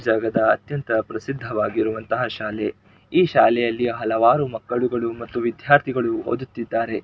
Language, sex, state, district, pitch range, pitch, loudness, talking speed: Kannada, male, Karnataka, Shimoga, 110-125 Hz, 115 Hz, -21 LUFS, 95 wpm